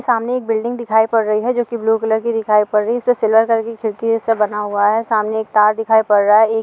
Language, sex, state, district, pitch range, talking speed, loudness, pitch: Hindi, female, Bihar, Muzaffarpur, 215-230 Hz, 315 wpm, -16 LUFS, 225 Hz